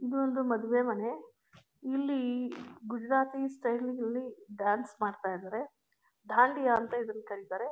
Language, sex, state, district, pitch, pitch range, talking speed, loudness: Kannada, female, Karnataka, Mysore, 240 Hz, 220-265 Hz, 110 wpm, -32 LUFS